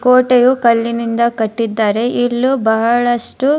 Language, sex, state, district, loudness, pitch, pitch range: Kannada, female, Karnataka, Dharwad, -14 LUFS, 240 Hz, 230-250 Hz